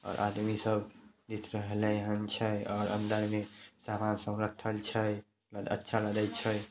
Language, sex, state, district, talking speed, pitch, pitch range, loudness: Maithili, male, Bihar, Samastipur, 145 wpm, 105 Hz, 105-110 Hz, -34 LUFS